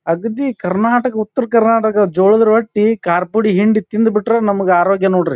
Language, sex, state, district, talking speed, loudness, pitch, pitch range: Kannada, male, Karnataka, Bijapur, 155 wpm, -14 LUFS, 215 Hz, 195-225 Hz